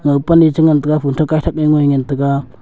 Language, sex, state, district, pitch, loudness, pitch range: Wancho, male, Arunachal Pradesh, Longding, 150 Hz, -13 LUFS, 140-155 Hz